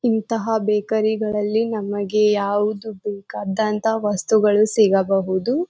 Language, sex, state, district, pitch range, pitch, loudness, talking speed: Kannada, female, Karnataka, Bijapur, 205-220 Hz, 215 Hz, -20 LUFS, 85 wpm